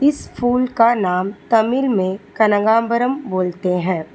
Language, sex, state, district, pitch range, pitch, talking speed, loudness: Hindi, female, Telangana, Hyderabad, 185-245 Hz, 220 Hz, 130 wpm, -18 LUFS